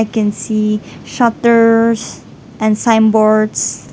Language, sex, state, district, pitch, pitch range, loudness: English, female, Nagaland, Dimapur, 220 Hz, 215-230 Hz, -13 LUFS